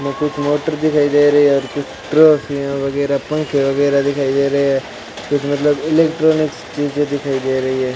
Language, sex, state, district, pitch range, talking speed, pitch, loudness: Hindi, male, Rajasthan, Bikaner, 140-150 Hz, 180 wpm, 145 Hz, -16 LUFS